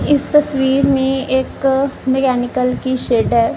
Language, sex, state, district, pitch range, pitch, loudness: Hindi, female, Punjab, Kapurthala, 255-275 Hz, 265 Hz, -16 LUFS